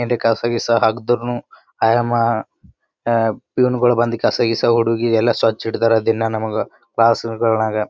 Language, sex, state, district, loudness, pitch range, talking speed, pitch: Kannada, male, Karnataka, Gulbarga, -18 LUFS, 115-120 Hz, 130 wpm, 115 Hz